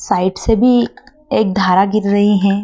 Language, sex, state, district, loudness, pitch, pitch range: Hindi, female, Madhya Pradesh, Dhar, -14 LUFS, 205 Hz, 195-235 Hz